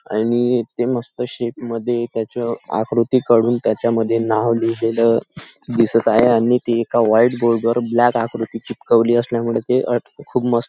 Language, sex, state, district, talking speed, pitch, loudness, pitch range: Marathi, male, Maharashtra, Nagpur, 165 wpm, 115 Hz, -18 LUFS, 115-120 Hz